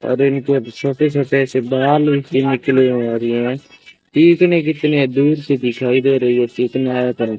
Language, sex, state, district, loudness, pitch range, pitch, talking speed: Hindi, male, Rajasthan, Bikaner, -16 LUFS, 125-140 Hz, 135 Hz, 155 wpm